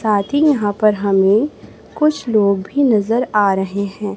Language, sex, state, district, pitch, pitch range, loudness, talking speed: Hindi, male, Chhattisgarh, Raipur, 210 Hz, 200-250 Hz, -16 LUFS, 170 wpm